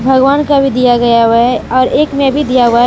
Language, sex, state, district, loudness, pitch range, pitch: Hindi, female, Jharkhand, Deoghar, -10 LUFS, 240-275 Hz, 255 Hz